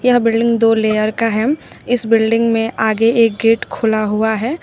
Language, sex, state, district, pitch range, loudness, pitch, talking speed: Hindi, female, Uttar Pradesh, Shamli, 220-230 Hz, -15 LUFS, 225 Hz, 195 wpm